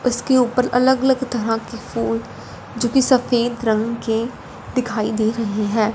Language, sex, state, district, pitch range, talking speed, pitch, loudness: Hindi, male, Punjab, Fazilka, 215-250 Hz, 160 wpm, 230 Hz, -19 LUFS